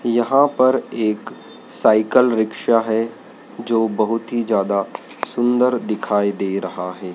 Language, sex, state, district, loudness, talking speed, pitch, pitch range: Hindi, male, Madhya Pradesh, Dhar, -19 LUFS, 125 wpm, 110 Hz, 105-120 Hz